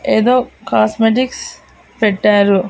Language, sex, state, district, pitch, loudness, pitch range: Telugu, female, Andhra Pradesh, Annamaya, 215 Hz, -14 LUFS, 200-245 Hz